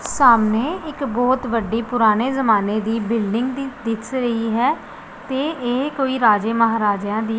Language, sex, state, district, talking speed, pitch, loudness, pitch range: Punjabi, female, Punjab, Pathankot, 155 wpm, 230 Hz, -19 LUFS, 225-260 Hz